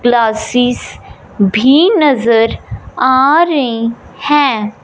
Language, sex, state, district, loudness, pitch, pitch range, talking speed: Hindi, male, Punjab, Fazilka, -11 LUFS, 245 Hz, 230-285 Hz, 75 wpm